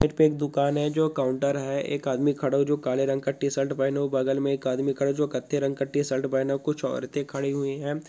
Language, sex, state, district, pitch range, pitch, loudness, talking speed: Hindi, male, Goa, North and South Goa, 135-145 Hz, 140 Hz, -26 LUFS, 265 wpm